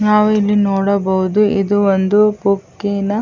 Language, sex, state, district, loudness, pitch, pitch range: Kannada, female, Karnataka, Chamarajanagar, -15 LUFS, 200 Hz, 195-210 Hz